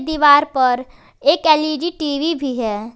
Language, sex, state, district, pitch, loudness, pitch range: Hindi, female, Jharkhand, Garhwa, 290 Hz, -16 LUFS, 255-310 Hz